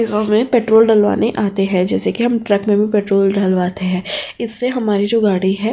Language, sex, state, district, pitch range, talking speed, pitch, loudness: Hindi, female, Uttar Pradesh, Jyotiba Phule Nagar, 195-225 Hz, 220 wpm, 210 Hz, -15 LUFS